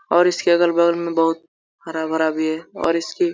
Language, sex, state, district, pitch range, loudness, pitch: Hindi, male, Bihar, Saran, 160-175 Hz, -19 LUFS, 170 Hz